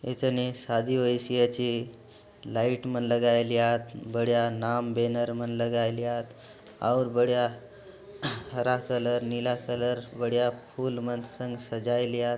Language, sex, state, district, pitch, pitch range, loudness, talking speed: Halbi, male, Chhattisgarh, Bastar, 120 Hz, 120-125 Hz, -28 LUFS, 110 wpm